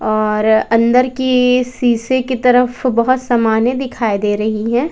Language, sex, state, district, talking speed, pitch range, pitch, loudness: Hindi, female, Bihar, West Champaran, 145 wpm, 220-255 Hz, 245 Hz, -14 LUFS